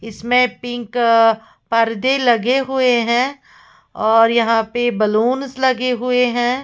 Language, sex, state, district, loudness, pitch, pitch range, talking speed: Hindi, female, Uttar Pradesh, Lalitpur, -16 LUFS, 240 Hz, 230-250 Hz, 120 wpm